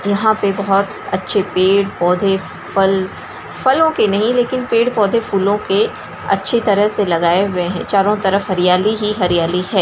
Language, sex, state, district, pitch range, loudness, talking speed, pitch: Hindi, female, Bihar, Darbhanga, 185-215 Hz, -15 LUFS, 155 wpm, 200 Hz